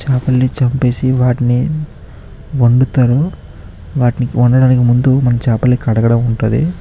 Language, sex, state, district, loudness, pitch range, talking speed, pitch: Telugu, male, Andhra Pradesh, Chittoor, -13 LUFS, 120-130 Hz, 90 wpm, 125 Hz